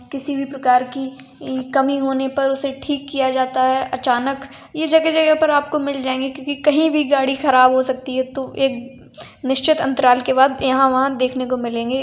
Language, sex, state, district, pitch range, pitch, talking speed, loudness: Hindi, female, Uttar Pradesh, Varanasi, 260-280 Hz, 270 Hz, 205 wpm, -18 LUFS